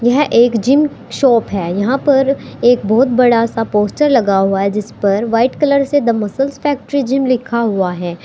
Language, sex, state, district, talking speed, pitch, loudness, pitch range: Hindi, female, Uttar Pradesh, Saharanpur, 195 wpm, 240 Hz, -14 LUFS, 210-275 Hz